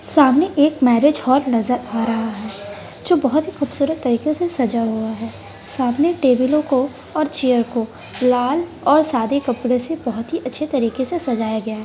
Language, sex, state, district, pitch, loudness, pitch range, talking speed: Hindi, female, Bihar, Kishanganj, 255 Hz, -18 LUFS, 235-300 Hz, 180 wpm